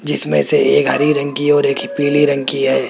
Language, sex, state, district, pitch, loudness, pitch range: Hindi, male, Rajasthan, Jaipur, 145 Hz, -14 LUFS, 140-145 Hz